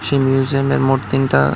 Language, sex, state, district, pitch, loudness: Bengali, male, Tripura, West Tripura, 135 Hz, -16 LUFS